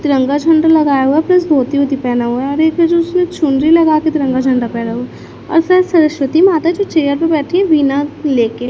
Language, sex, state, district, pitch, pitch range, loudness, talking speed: Hindi, female, Chhattisgarh, Raipur, 300 Hz, 270-330 Hz, -13 LUFS, 230 wpm